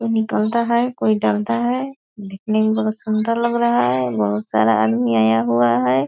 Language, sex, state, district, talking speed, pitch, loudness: Hindi, female, Bihar, Purnia, 190 wpm, 195 Hz, -18 LUFS